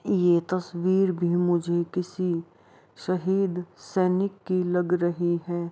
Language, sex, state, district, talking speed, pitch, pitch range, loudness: Hindi, female, Bihar, Araria, 325 wpm, 180 Hz, 175-185 Hz, -26 LUFS